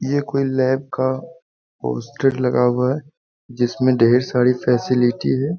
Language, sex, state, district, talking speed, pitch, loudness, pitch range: Hindi, male, Bihar, Jamui, 140 wpm, 130 Hz, -19 LUFS, 125-135 Hz